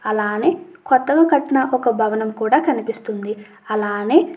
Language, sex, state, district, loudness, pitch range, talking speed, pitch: Telugu, female, Andhra Pradesh, Chittoor, -18 LUFS, 215-290 Hz, 125 wpm, 230 Hz